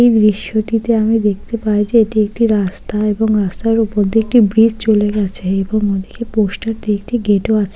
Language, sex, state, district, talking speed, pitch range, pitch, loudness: Bengali, female, West Bengal, Malda, 195 wpm, 205-225 Hz, 215 Hz, -15 LUFS